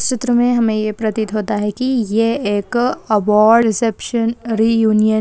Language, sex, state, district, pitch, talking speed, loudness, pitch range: Hindi, female, Maharashtra, Aurangabad, 225 Hz, 175 wpm, -16 LUFS, 215-240 Hz